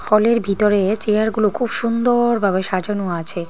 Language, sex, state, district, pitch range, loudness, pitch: Bengali, female, Tripura, Dhalai, 195-230 Hz, -18 LUFS, 210 Hz